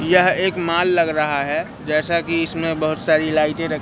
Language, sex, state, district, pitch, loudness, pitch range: Hindi, male, Madhya Pradesh, Katni, 165 Hz, -19 LUFS, 155-170 Hz